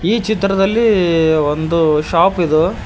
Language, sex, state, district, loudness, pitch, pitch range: Kannada, male, Karnataka, Koppal, -14 LUFS, 170 Hz, 160-195 Hz